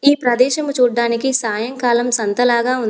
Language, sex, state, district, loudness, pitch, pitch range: Telugu, female, Telangana, Komaram Bheem, -16 LUFS, 245 Hz, 235-255 Hz